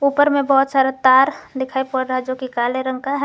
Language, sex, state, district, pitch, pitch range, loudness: Hindi, female, Jharkhand, Garhwa, 265 Hz, 260-275 Hz, -18 LUFS